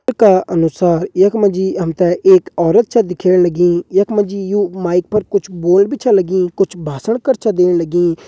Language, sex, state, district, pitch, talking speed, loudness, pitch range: Hindi, male, Uttarakhand, Uttarkashi, 185 Hz, 215 wpm, -14 LUFS, 175-205 Hz